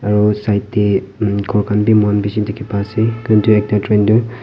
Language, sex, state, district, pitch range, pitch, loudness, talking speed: Nagamese, male, Nagaland, Kohima, 105-110 Hz, 105 Hz, -15 LUFS, 230 wpm